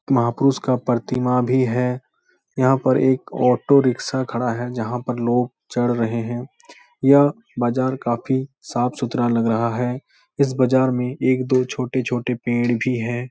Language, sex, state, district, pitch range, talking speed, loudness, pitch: Hindi, male, Bihar, Supaul, 120-130 Hz, 155 wpm, -20 LUFS, 125 Hz